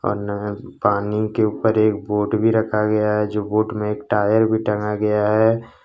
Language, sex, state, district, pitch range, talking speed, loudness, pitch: Hindi, male, Jharkhand, Ranchi, 105-110 Hz, 205 wpm, -20 LUFS, 105 Hz